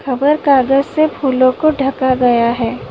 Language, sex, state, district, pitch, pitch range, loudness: Hindi, female, Uttar Pradesh, Budaun, 265 Hz, 255-285 Hz, -14 LUFS